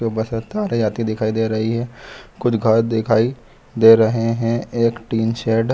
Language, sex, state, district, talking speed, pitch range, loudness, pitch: Hindi, male, Jharkhand, Jamtara, 175 wpm, 110-115 Hz, -18 LUFS, 115 Hz